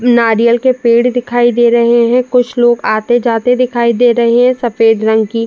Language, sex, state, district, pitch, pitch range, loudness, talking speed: Hindi, female, Uttar Pradesh, Jalaun, 240 Hz, 235-245 Hz, -11 LUFS, 185 wpm